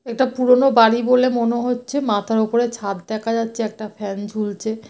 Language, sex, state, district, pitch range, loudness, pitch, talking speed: Bengali, female, West Bengal, North 24 Parganas, 215-245 Hz, -19 LUFS, 230 Hz, 170 wpm